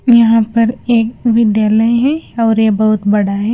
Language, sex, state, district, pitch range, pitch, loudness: Hindi, female, Punjab, Kapurthala, 215-235 Hz, 225 Hz, -12 LUFS